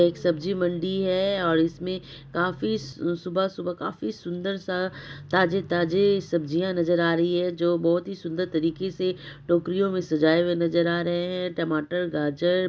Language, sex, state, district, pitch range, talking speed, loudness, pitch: Maithili, male, Bihar, Supaul, 165-185 Hz, 155 wpm, -25 LUFS, 175 Hz